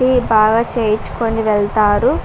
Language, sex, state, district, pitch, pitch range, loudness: Telugu, female, Andhra Pradesh, Guntur, 220 Hz, 215-230 Hz, -15 LUFS